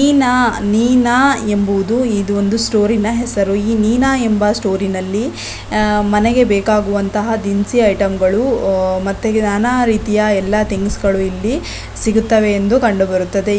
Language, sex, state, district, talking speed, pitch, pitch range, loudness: Kannada, female, Karnataka, Belgaum, 115 wpm, 210 Hz, 200-230 Hz, -15 LUFS